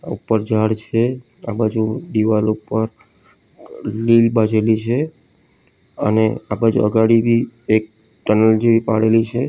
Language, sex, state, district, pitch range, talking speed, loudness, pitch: Gujarati, male, Gujarat, Valsad, 110-115 Hz, 135 wpm, -17 LUFS, 110 Hz